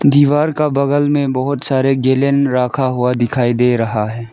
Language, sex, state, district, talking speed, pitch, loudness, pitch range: Hindi, male, Arunachal Pradesh, Lower Dibang Valley, 180 wpm, 130 Hz, -15 LUFS, 125-140 Hz